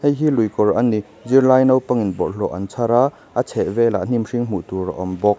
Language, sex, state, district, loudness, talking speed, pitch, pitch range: Mizo, male, Mizoram, Aizawl, -18 LUFS, 210 wpm, 115 Hz, 105-130 Hz